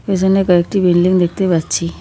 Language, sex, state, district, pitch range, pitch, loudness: Bengali, female, West Bengal, Cooch Behar, 175-190 Hz, 180 Hz, -14 LUFS